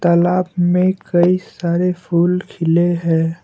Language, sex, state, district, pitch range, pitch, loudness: Hindi, male, Assam, Kamrup Metropolitan, 170-180 Hz, 175 Hz, -16 LUFS